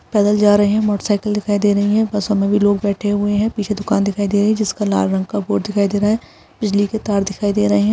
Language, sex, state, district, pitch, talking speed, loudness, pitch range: Hindi, female, Chhattisgarh, Sukma, 205 Hz, 285 wpm, -17 LUFS, 200-210 Hz